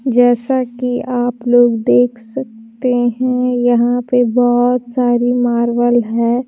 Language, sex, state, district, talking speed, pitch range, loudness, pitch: Hindi, female, Bihar, Kaimur, 120 wpm, 240-250 Hz, -14 LUFS, 245 Hz